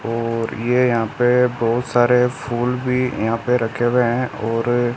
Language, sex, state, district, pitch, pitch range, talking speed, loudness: Hindi, male, Rajasthan, Bikaner, 120 Hz, 115-125 Hz, 170 wpm, -19 LUFS